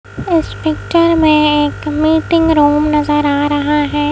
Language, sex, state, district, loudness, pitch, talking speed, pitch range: Hindi, female, Madhya Pradesh, Bhopal, -13 LUFS, 300 Hz, 145 wpm, 295-315 Hz